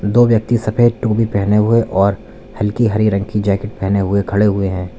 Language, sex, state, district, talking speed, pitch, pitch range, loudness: Hindi, male, Uttar Pradesh, Lalitpur, 205 wpm, 105 Hz, 100-115 Hz, -15 LUFS